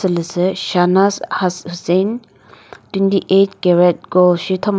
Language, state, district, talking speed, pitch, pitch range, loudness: Chakhesang, Nagaland, Dimapur, 100 wpm, 185 Hz, 175-195 Hz, -15 LUFS